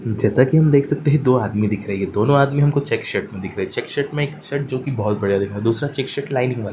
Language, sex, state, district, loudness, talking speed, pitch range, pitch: Hindi, male, Uttar Pradesh, Varanasi, -19 LUFS, 330 wpm, 105-140 Hz, 130 Hz